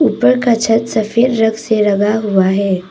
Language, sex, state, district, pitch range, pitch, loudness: Hindi, female, Arunachal Pradesh, Papum Pare, 200-225 Hz, 220 Hz, -13 LUFS